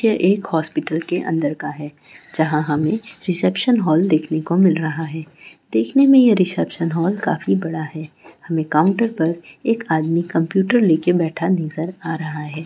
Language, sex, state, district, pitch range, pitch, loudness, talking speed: Hindi, female, West Bengal, North 24 Parganas, 155-185 Hz, 165 Hz, -19 LUFS, 170 wpm